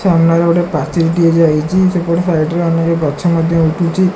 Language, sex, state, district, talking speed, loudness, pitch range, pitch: Odia, female, Odisha, Malkangiri, 175 wpm, -13 LUFS, 165-175 Hz, 170 Hz